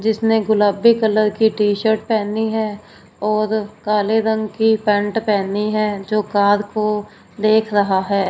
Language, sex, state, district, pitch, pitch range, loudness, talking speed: Hindi, female, Punjab, Fazilka, 215 Hz, 205-220 Hz, -18 LUFS, 150 wpm